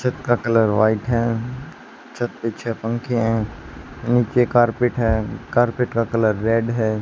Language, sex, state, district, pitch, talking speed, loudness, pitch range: Hindi, male, Haryana, Charkhi Dadri, 115 Hz, 160 wpm, -20 LUFS, 110-120 Hz